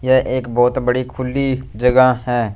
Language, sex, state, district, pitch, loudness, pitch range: Hindi, male, Punjab, Fazilka, 125 Hz, -17 LUFS, 125-130 Hz